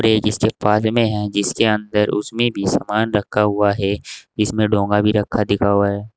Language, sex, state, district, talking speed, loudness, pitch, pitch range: Hindi, male, Uttar Pradesh, Saharanpur, 195 wpm, -18 LUFS, 105 Hz, 100-110 Hz